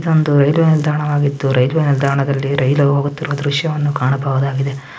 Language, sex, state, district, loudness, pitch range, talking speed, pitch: Kannada, male, Karnataka, Dharwad, -16 LUFS, 140-150 Hz, 110 wpm, 140 Hz